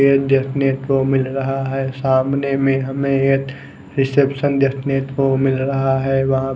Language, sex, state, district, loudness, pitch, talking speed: Hindi, male, Odisha, Khordha, -18 LUFS, 135 Hz, 155 wpm